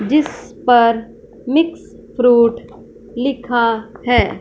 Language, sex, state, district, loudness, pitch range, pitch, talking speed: Hindi, female, Punjab, Fazilka, -16 LUFS, 230-255 Hz, 240 Hz, 80 wpm